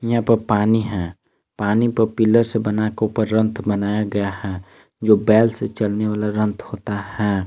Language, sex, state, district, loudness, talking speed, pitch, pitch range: Hindi, male, Jharkhand, Palamu, -19 LUFS, 185 wpm, 105 Hz, 105-110 Hz